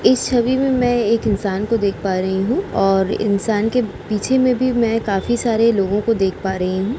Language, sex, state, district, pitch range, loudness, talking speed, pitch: Hindi, female, Uttar Pradesh, Jalaun, 195-240 Hz, -18 LUFS, 225 wpm, 220 Hz